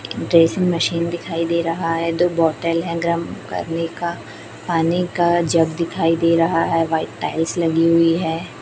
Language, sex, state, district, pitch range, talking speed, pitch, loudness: Hindi, female, Chhattisgarh, Raipur, 165-170 Hz, 165 wpm, 165 Hz, -19 LUFS